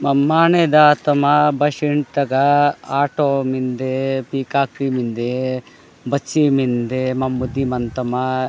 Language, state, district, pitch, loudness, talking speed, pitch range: Gondi, Chhattisgarh, Sukma, 135 Hz, -18 LUFS, 105 wpm, 130-145 Hz